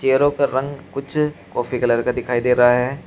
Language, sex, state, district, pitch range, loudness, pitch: Hindi, male, Uttar Pradesh, Shamli, 125-140 Hz, -19 LUFS, 130 Hz